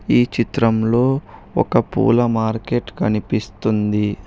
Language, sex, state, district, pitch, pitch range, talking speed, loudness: Telugu, male, Telangana, Hyderabad, 110 Hz, 105-115 Hz, 85 wpm, -19 LUFS